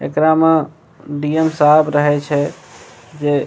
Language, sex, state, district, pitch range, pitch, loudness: Maithili, male, Bihar, Begusarai, 145-160 Hz, 150 Hz, -15 LUFS